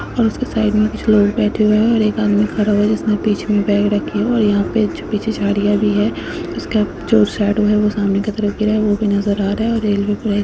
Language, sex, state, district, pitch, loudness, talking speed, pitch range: Bhojpuri, female, Uttar Pradesh, Gorakhpur, 210 Hz, -16 LUFS, 280 wpm, 205-215 Hz